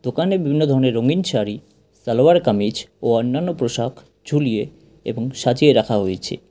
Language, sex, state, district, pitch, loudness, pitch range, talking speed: Bengali, male, West Bengal, Cooch Behar, 130 Hz, -19 LUFS, 115-150 Hz, 140 wpm